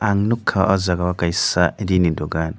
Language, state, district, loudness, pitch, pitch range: Kokborok, Tripura, Dhalai, -19 LUFS, 90 Hz, 85-100 Hz